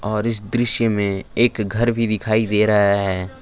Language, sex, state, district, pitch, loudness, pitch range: Hindi, male, Jharkhand, Palamu, 105 Hz, -19 LUFS, 100-115 Hz